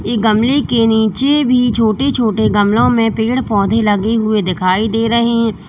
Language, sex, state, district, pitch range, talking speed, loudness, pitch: Hindi, female, Uttar Pradesh, Lalitpur, 215-235 Hz, 180 wpm, -13 LUFS, 225 Hz